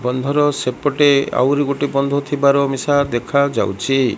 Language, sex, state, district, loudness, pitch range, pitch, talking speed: Odia, female, Odisha, Malkangiri, -17 LUFS, 130-145 Hz, 140 Hz, 115 wpm